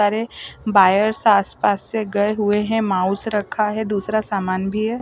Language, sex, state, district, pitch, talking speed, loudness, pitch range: Hindi, female, Bihar, West Champaran, 210 Hz, 180 wpm, -19 LUFS, 200-215 Hz